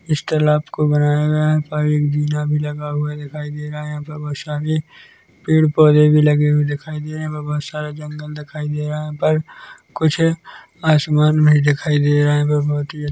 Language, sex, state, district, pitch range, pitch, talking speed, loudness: Hindi, male, Chhattisgarh, Korba, 150-155 Hz, 150 Hz, 215 wpm, -18 LUFS